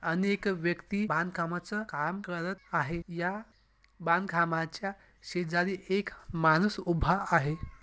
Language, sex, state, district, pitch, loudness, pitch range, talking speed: Marathi, male, Maharashtra, Dhule, 175 Hz, -31 LUFS, 170-195 Hz, 120 wpm